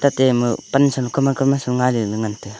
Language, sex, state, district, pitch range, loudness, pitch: Wancho, male, Arunachal Pradesh, Longding, 115-135 Hz, -19 LUFS, 125 Hz